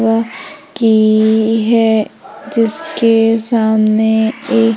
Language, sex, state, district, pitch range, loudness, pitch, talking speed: Hindi, female, Madhya Pradesh, Umaria, 220-230 Hz, -13 LUFS, 225 Hz, 75 wpm